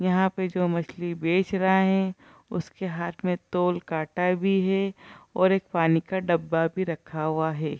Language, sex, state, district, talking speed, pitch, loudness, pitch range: Hindi, female, Bihar, Kishanganj, 175 wpm, 180 Hz, -26 LUFS, 165-190 Hz